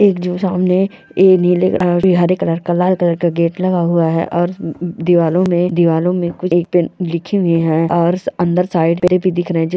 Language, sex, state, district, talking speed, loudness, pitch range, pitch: Hindi, female, Bihar, Darbhanga, 210 wpm, -15 LUFS, 170-180 Hz, 175 Hz